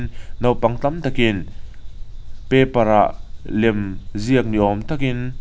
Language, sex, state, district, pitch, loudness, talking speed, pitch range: Mizo, male, Mizoram, Aizawl, 110 Hz, -19 LUFS, 110 wpm, 100-125 Hz